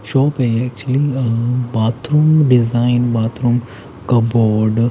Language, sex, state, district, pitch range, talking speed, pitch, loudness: Hindi, male, Haryana, Charkhi Dadri, 115-130 Hz, 110 wpm, 120 Hz, -15 LUFS